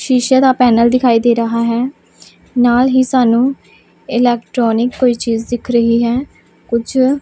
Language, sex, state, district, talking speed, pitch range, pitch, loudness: Punjabi, female, Punjab, Pathankot, 140 wpm, 235-255 Hz, 245 Hz, -13 LUFS